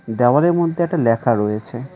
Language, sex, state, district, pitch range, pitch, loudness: Bengali, male, West Bengal, Cooch Behar, 115-165 Hz, 120 Hz, -17 LUFS